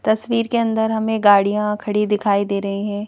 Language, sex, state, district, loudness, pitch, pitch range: Hindi, female, Madhya Pradesh, Bhopal, -18 LUFS, 210 Hz, 205-220 Hz